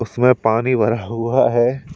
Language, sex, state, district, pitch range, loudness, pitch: Hindi, male, Uttar Pradesh, Shamli, 115-125 Hz, -17 LUFS, 120 Hz